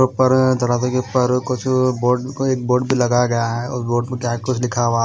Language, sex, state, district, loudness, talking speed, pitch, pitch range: Hindi, male, Odisha, Malkangiri, -18 LUFS, 215 wpm, 125 Hz, 120-130 Hz